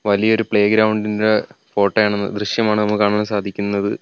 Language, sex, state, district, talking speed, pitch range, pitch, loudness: Malayalam, male, Kerala, Kollam, 165 wpm, 100-105 Hz, 105 Hz, -18 LUFS